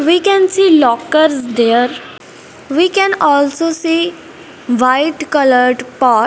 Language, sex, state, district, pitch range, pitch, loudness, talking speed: English, female, Punjab, Fazilka, 250-335 Hz, 305 Hz, -12 LUFS, 115 wpm